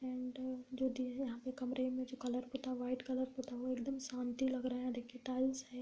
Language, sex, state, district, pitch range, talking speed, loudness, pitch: Hindi, female, Bihar, Bhagalpur, 250-260 Hz, 255 wpm, -41 LUFS, 255 Hz